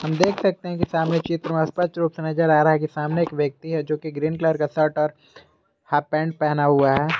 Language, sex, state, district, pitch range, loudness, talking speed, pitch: Hindi, male, Jharkhand, Garhwa, 150-165 Hz, -22 LUFS, 235 wpm, 155 Hz